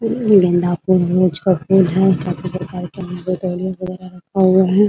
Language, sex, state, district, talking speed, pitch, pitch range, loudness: Hindi, female, Bihar, Muzaffarpur, 145 wpm, 185 Hz, 180-190 Hz, -16 LUFS